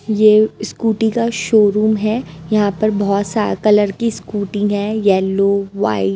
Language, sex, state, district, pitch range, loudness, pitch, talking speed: Hindi, female, Bihar, West Champaran, 200-215 Hz, -16 LUFS, 210 Hz, 155 wpm